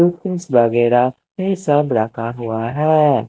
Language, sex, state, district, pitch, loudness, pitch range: Hindi, male, Himachal Pradesh, Shimla, 130 Hz, -17 LUFS, 115-160 Hz